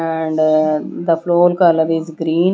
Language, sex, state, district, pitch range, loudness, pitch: English, female, Punjab, Kapurthala, 160-170 Hz, -15 LUFS, 165 Hz